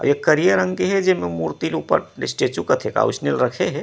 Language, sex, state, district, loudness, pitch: Chhattisgarhi, male, Chhattisgarh, Rajnandgaon, -20 LUFS, 175 Hz